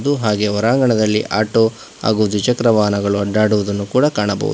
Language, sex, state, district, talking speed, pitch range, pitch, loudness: Kannada, male, Karnataka, Bangalore, 105 wpm, 105-115 Hz, 110 Hz, -16 LUFS